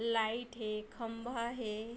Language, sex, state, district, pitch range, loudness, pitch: Chhattisgarhi, female, Chhattisgarh, Bilaspur, 220-235 Hz, -39 LUFS, 230 Hz